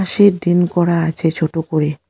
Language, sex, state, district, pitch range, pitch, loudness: Bengali, female, West Bengal, Alipurduar, 160-175 Hz, 170 Hz, -16 LUFS